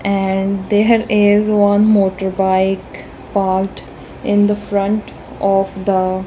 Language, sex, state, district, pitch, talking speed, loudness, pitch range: English, female, Punjab, Kapurthala, 195 Hz, 115 wpm, -15 LUFS, 190-205 Hz